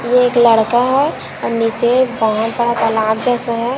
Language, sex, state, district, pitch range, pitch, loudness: Hindi, female, Chhattisgarh, Raipur, 225-245 Hz, 235 Hz, -15 LUFS